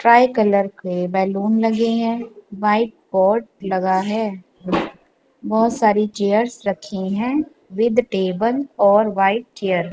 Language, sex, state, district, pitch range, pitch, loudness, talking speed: Hindi, female, Punjab, Kapurthala, 195-230 Hz, 210 Hz, -19 LUFS, 125 wpm